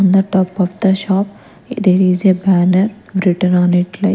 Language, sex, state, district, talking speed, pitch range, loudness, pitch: English, female, Punjab, Kapurthala, 200 wpm, 185-200 Hz, -14 LUFS, 190 Hz